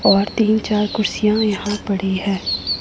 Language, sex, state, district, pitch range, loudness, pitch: Hindi, female, Punjab, Pathankot, 195-215 Hz, -19 LUFS, 205 Hz